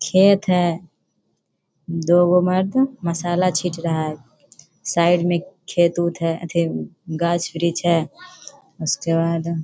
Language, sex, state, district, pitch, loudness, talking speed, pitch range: Hindi, female, Bihar, Jamui, 170 Hz, -20 LUFS, 130 wpm, 165-180 Hz